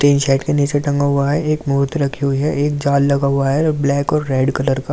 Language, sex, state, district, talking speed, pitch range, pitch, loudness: Hindi, male, Delhi, New Delhi, 255 wpm, 140-145 Hz, 140 Hz, -17 LUFS